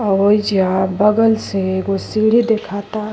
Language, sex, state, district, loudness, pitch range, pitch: Bhojpuri, female, Uttar Pradesh, Gorakhpur, -16 LUFS, 195-215 Hz, 205 Hz